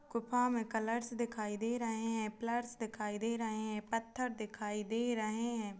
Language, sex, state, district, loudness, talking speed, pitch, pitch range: Hindi, female, Chhattisgarh, Kabirdham, -38 LUFS, 165 wpm, 225 Hz, 215-235 Hz